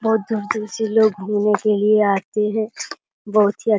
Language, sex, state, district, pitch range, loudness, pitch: Hindi, male, Bihar, Supaul, 210-220 Hz, -19 LUFS, 215 Hz